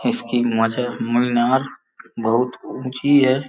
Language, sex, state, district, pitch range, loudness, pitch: Hindi, male, Uttar Pradesh, Gorakhpur, 120-135 Hz, -20 LUFS, 125 Hz